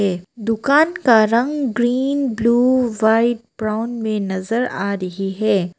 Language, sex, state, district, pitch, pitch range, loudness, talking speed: Hindi, female, Arunachal Pradesh, Papum Pare, 225 Hz, 200-245 Hz, -18 LUFS, 135 wpm